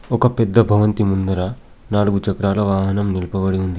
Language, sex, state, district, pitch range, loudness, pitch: Telugu, male, Telangana, Adilabad, 95-105 Hz, -18 LUFS, 100 Hz